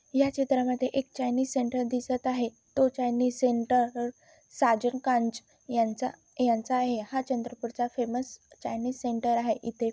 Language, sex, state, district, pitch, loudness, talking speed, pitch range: Marathi, female, Maharashtra, Chandrapur, 250 Hz, -29 LUFS, 150 wpm, 235-255 Hz